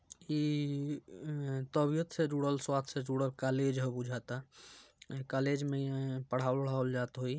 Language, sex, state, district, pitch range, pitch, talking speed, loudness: Bhojpuri, male, Bihar, Gopalganj, 130-145 Hz, 135 Hz, 145 wpm, -36 LUFS